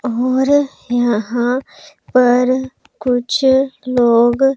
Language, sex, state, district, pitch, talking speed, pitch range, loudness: Hindi, female, Punjab, Pathankot, 250 Hz, 65 wpm, 240-265 Hz, -15 LUFS